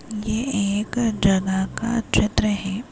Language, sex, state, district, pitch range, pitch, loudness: Hindi, male, Rajasthan, Nagaur, 195-230 Hz, 210 Hz, -22 LUFS